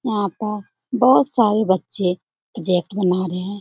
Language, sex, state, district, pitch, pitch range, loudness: Hindi, female, Bihar, Jamui, 200 Hz, 185-220 Hz, -19 LUFS